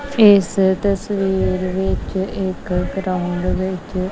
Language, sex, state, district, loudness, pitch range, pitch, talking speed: Punjabi, female, Punjab, Kapurthala, -18 LUFS, 185-195 Hz, 190 Hz, 85 wpm